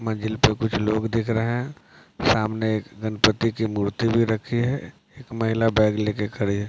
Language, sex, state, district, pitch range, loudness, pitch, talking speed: Hindi, male, Bihar, Patna, 105-115 Hz, -23 LUFS, 110 Hz, 200 wpm